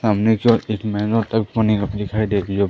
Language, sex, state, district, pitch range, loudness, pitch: Hindi, male, Madhya Pradesh, Umaria, 105-110 Hz, -19 LUFS, 110 Hz